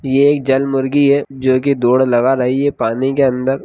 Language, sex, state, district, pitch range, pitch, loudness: Hindi, male, Bihar, Lakhisarai, 130-140 Hz, 135 Hz, -14 LUFS